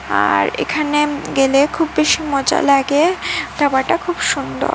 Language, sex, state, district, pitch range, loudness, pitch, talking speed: Bengali, female, Assam, Hailakandi, 270-315 Hz, -16 LUFS, 290 Hz, 125 wpm